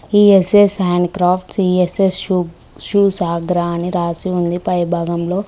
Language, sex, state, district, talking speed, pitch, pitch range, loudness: Telugu, female, Telangana, Mahabubabad, 120 wpm, 180 Hz, 175-190 Hz, -15 LUFS